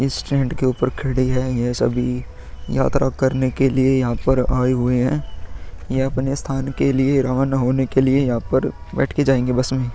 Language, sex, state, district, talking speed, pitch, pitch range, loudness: Hindi, male, Bihar, Vaishali, 205 wpm, 130 Hz, 125-135 Hz, -19 LUFS